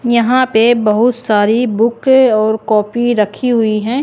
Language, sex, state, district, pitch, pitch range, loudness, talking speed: Hindi, female, Punjab, Pathankot, 230 Hz, 215-240 Hz, -12 LUFS, 150 wpm